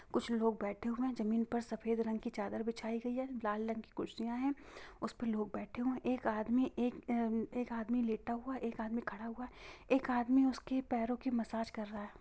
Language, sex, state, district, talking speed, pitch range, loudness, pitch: Hindi, female, Bihar, Sitamarhi, 225 wpm, 225-245 Hz, -38 LUFS, 235 Hz